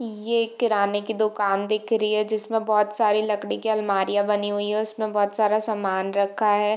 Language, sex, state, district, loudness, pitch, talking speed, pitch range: Hindi, female, Bihar, Darbhanga, -23 LUFS, 210 Hz, 205 wpm, 205-220 Hz